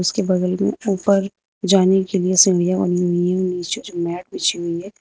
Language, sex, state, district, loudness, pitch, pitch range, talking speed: Hindi, female, Uttar Pradesh, Lucknow, -18 LUFS, 185 Hz, 180-195 Hz, 215 wpm